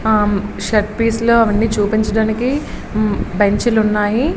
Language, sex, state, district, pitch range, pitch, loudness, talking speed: Telugu, female, Andhra Pradesh, Srikakulam, 210-230 Hz, 220 Hz, -16 LUFS, 95 wpm